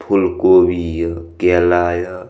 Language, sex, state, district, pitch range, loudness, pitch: Maithili, male, Bihar, Madhepura, 85-90 Hz, -15 LUFS, 90 Hz